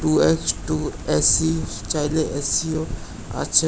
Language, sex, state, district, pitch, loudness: Bengali, male, Tripura, West Tripura, 150 Hz, -21 LUFS